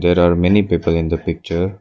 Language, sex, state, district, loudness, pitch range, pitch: English, male, Arunachal Pradesh, Lower Dibang Valley, -17 LUFS, 85-90 Hz, 85 Hz